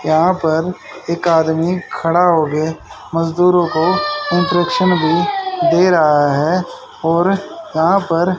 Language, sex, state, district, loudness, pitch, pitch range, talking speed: Hindi, male, Haryana, Jhajjar, -15 LUFS, 175 Hz, 160-185 Hz, 120 wpm